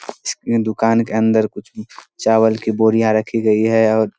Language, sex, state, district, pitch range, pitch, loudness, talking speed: Hindi, male, Bihar, Vaishali, 110-115 Hz, 110 Hz, -16 LUFS, 200 wpm